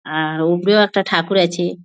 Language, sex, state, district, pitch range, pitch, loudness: Bengali, female, West Bengal, North 24 Parganas, 165-195 Hz, 175 Hz, -16 LUFS